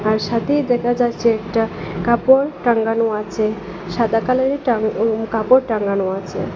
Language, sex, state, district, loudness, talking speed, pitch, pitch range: Bengali, female, Assam, Hailakandi, -18 LUFS, 135 wpm, 225 Hz, 215-240 Hz